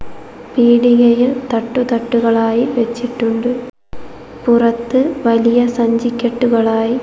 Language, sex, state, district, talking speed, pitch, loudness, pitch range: Malayalam, female, Kerala, Kozhikode, 60 wpm, 235 Hz, -14 LUFS, 230-245 Hz